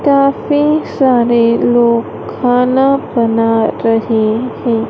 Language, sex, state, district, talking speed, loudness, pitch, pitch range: Hindi, female, Madhya Pradesh, Dhar, 85 wpm, -12 LUFS, 240 Hz, 225-270 Hz